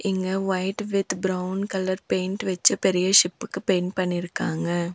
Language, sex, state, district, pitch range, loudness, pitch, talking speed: Tamil, female, Tamil Nadu, Nilgiris, 180-190 Hz, -24 LUFS, 185 Hz, 135 wpm